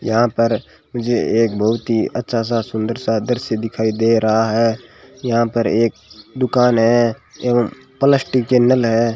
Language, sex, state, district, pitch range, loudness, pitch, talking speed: Hindi, male, Rajasthan, Bikaner, 110-120 Hz, -17 LUFS, 115 Hz, 165 wpm